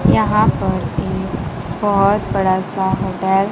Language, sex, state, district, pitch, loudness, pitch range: Hindi, female, Bihar, Kaimur, 190 Hz, -17 LUFS, 185-195 Hz